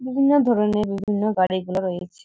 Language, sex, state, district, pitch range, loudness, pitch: Bengali, female, West Bengal, Malda, 185-225 Hz, -21 LUFS, 205 Hz